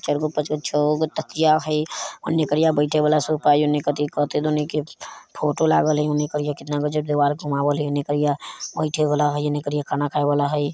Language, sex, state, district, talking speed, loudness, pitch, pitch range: Bajjika, male, Bihar, Vaishali, 100 wpm, -22 LUFS, 150 Hz, 145-150 Hz